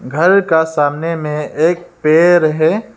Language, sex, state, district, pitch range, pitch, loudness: Hindi, male, Arunachal Pradesh, Lower Dibang Valley, 155-175 Hz, 160 Hz, -13 LUFS